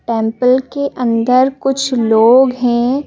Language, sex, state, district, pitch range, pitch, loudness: Hindi, female, Madhya Pradesh, Bhopal, 235-265 Hz, 250 Hz, -13 LUFS